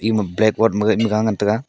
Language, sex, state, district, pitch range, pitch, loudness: Wancho, male, Arunachal Pradesh, Longding, 105-110 Hz, 110 Hz, -18 LUFS